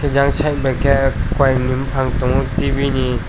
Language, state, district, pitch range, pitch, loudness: Kokborok, Tripura, West Tripura, 130-140 Hz, 135 Hz, -17 LUFS